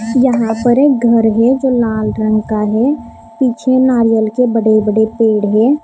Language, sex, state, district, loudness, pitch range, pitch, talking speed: Hindi, female, Maharashtra, Mumbai Suburban, -13 LUFS, 220-250 Hz, 230 Hz, 165 wpm